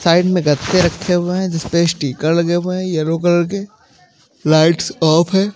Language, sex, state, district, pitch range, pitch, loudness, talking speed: Hindi, male, Maharashtra, Mumbai Suburban, 160-180 Hz, 170 Hz, -16 LUFS, 195 wpm